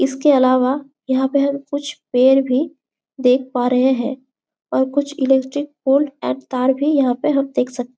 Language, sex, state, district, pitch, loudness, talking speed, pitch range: Hindi, female, Chhattisgarh, Bastar, 265 Hz, -18 LUFS, 180 wpm, 255-285 Hz